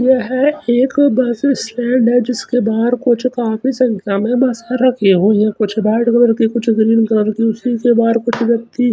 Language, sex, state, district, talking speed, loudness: Hindi, male, Chandigarh, Chandigarh, 200 wpm, -14 LUFS